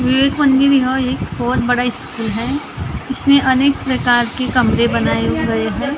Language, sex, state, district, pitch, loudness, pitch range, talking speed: Hindi, female, Maharashtra, Gondia, 260 Hz, -16 LUFS, 245-275 Hz, 140 wpm